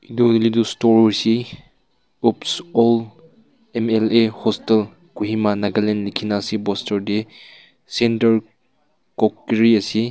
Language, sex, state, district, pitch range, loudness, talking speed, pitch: Nagamese, male, Nagaland, Kohima, 105-115 Hz, -19 LUFS, 115 wpm, 110 Hz